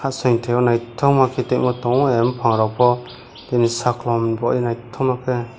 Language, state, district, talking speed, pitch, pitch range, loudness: Kokborok, Tripura, West Tripura, 140 wpm, 125 Hz, 120-125 Hz, -19 LUFS